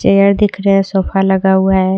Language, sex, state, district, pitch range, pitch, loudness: Hindi, female, Jharkhand, Deoghar, 190-195 Hz, 195 Hz, -12 LUFS